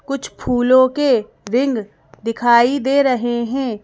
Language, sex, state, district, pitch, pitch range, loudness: Hindi, female, Madhya Pradesh, Bhopal, 250 Hz, 235-270 Hz, -17 LUFS